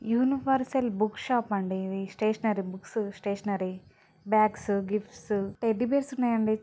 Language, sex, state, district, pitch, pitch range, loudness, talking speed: Telugu, female, Telangana, Nalgonda, 215 Hz, 200-235 Hz, -29 LUFS, 125 wpm